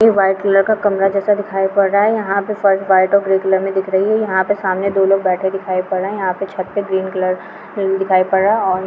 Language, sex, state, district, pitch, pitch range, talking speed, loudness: Hindi, female, Jharkhand, Jamtara, 195 Hz, 190-200 Hz, 265 wpm, -16 LUFS